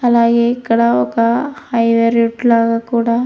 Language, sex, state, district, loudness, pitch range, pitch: Telugu, female, Andhra Pradesh, Krishna, -14 LUFS, 230-240 Hz, 230 Hz